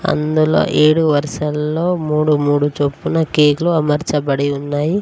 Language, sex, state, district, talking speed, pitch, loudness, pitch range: Telugu, female, Telangana, Mahabubabad, 110 wpm, 150 Hz, -16 LUFS, 145-155 Hz